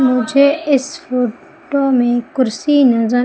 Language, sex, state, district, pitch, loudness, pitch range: Hindi, female, Madhya Pradesh, Umaria, 260 Hz, -15 LUFS, 245-285 Hz